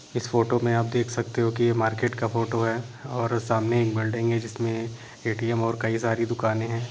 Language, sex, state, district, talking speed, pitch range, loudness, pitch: Hindi, male, Bihar, Saran, 215 wpm, 115-120 Hz, -26 LUFS, 115 Hz